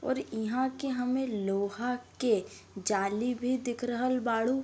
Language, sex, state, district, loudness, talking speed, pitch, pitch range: Bhojpuri, female, Uttar Pradesh, Deoria, -31 LUFS, 140 wpm, 245 Hz, 220-255 Hz